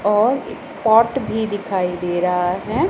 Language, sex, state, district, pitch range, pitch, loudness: Hindi, female, Punjab, Pathankot, 180-230 Hz, 210 Hz, -19 LUFS